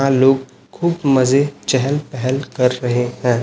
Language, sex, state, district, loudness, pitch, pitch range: Hindi, male, Chhattisgarh, Raipur, -17 LUFS, 130 Hz, 125-140 Hz